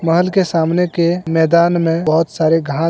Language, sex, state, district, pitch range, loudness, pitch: Hindi, male, Jharkhand, Deoghar, 165-175 Hz, -15 LUFS, 165 Hz